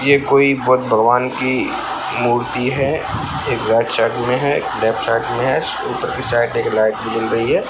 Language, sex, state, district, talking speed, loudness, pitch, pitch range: Hindi, male, Bihar, Saran, 210 wpm, -17 LUFS, 125 Hz, 115-130 Hz